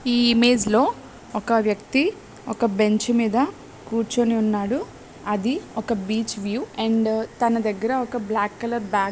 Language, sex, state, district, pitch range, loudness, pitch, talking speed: Telugu, female, Andhra Pradesh, Srikakulam, 215-240 Hz, -22 LUFS, 230 Hz, 145 wpm